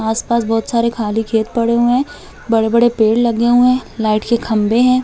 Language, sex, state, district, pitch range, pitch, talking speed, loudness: Hindi, female, Chhattisgarh, Bastar, 225-240 Hz, 235 Hz, 225 wpm, -15 LUFS